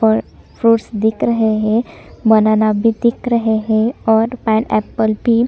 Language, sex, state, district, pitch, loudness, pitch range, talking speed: Hindi, female, Chhattisgarh, Sukma, 220 Hz, -15 LUFS, 220-230 Hz, 155 wpm